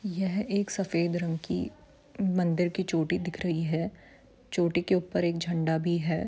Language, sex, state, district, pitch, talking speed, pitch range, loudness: Hindi, female, Bihar, Saran, 175 Hz, 170 wpm, 170-190 Hz, -29 LUFS